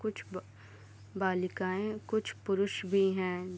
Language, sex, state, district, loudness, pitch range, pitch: Hindi, female, Bihar, East Champaran, -33 LUFS, 180-200 Hz, 190 Hz